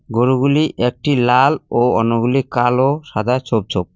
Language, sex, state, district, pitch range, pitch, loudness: Bengali, male, West Bengal, Cooch Behar, 115-135 Hz, 125 Hz, -16 LUFS